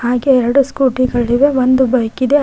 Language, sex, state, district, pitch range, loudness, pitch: Kannada, female, Karnataka, Koppal, 245-270 Hz, -13 LUFS, 255 Hz